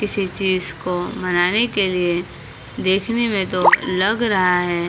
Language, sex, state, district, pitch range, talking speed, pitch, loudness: Hindi, female, Maharashtra, Mumbai Suburban, 175-200 Hz, 145 wpm, 185 Hz, -18 LUFS